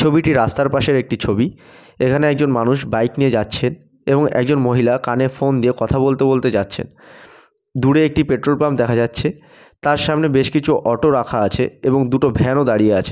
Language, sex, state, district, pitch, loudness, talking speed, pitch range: Bengali, male, West Bengal, North 24 Parganas, 135 Hz, -17 LUFS, 185 wpm, 125-150 Hz